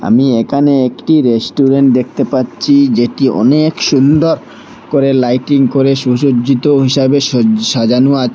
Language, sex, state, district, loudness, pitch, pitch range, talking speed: Bengali, male, Assam, Hailakandi, -11 LUFS, 135 Hz, 125-140 Hz, 120 wpm